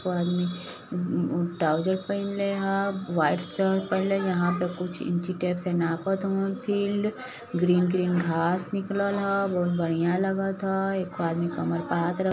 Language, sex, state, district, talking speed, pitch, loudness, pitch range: Bhojpuri, female, Uttar Pradesh, Varanasi, 170 wpm, 185 Hz, -27 LUFS, 175-195 Hz